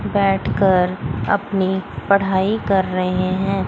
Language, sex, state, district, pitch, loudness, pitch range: Hindi, female, Chandigarh, Chandigarh, 190 Hz, -19 LUFS, 185-200 Hz